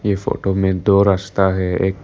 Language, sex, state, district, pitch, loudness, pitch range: Hindi, male, Arunachal Pradesh, Lower Dibang Valley, 95 Hz, -17 LUFS, 95-100 Hz